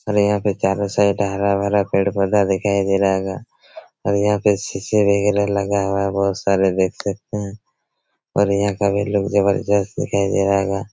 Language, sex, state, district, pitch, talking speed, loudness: Hindi, male, Chhattisgarh, Raigarh, 100 Hz, 185 wpm, -19 LUFS